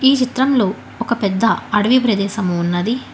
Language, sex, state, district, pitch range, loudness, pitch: Telugu, female, Telangana, Hyderabad, 200-255 Hz, -17 LUFS, 225 Hz